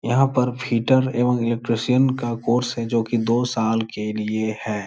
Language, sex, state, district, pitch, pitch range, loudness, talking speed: Hindi, male, Bihar, Jahanabad, 120 Hz, 110-125 Hz, -21 LUFS, 185 wpm